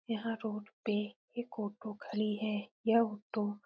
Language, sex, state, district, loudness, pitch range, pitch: Hindi, female, Bihar, Saran, -36 LUFS, 210-225 Hz, 215 Hz